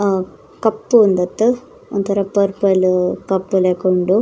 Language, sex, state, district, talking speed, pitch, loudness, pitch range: Tulu, female, Karnataka, Dakshina Kannada, 115 wpm, 195 Hz, -17 LUFS, 185-215 Hz